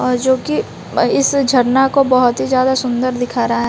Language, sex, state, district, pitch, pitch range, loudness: Hindi, female, Odisha, Malkangiri, 255 Hz, 245-265 Hz, -15 LUFS